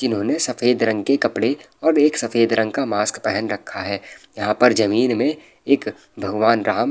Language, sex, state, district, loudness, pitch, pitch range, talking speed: Hindi, male, Bihar, Madhepura, -19 LUFS, 115 Hz, 110-135 Hz, 200 wpm